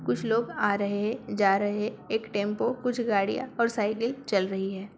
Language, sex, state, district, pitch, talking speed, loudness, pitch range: Hindi, female, Bihar, Sitamarhi, 210 Hz, 205 wpm, -28 LUFS, 200-230 Hz